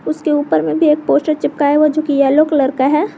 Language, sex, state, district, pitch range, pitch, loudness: Hindi, female, Jharkhand, Garhwa, 280-305 Hz, 300 Hz, -14 LUFS